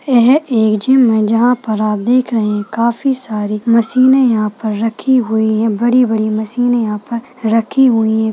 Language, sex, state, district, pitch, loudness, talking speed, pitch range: Hindi, female, Chhattisgarh, Balrampur, 230 Hz, -13 LUFS, 185 wpm, 215-250 Hz